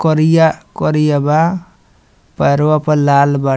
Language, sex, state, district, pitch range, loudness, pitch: Bhojpuri, male, Bihar, Muzaffarpur, 145-160 Hz, -13 LUFS, 150 Hz